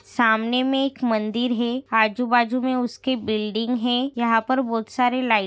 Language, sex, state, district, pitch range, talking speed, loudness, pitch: Hindi, female, Bihar, Araria, 225-255 Hz, 185 wpm, -22 LUFS, 245 Hz